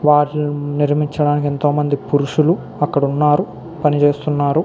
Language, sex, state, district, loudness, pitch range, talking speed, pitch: Telugu, male, Andhra Pradesh, Krishna, -17 LUFS, 145-150 Hz, 90 wpm, 145 Hz